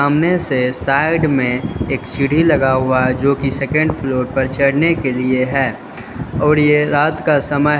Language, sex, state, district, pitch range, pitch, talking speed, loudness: Hindi, male, Uttar Pradesh, Lalitpur, 130-150 Hz, 140 Hz, 175 wpm, -15 LUFS